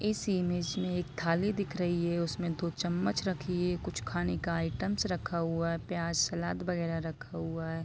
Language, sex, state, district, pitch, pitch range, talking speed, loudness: Hindi, female, Jharkhand, Sahebganj, 170 Hz, 165-180 Hz, 200 wpm, -33 LUFS